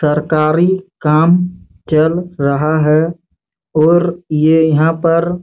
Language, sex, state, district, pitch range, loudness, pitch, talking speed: Hindi, male, Chhattisgarh, Bastar, 155-170 Hz, -13 LUFS, 160 Hz, 100 wpm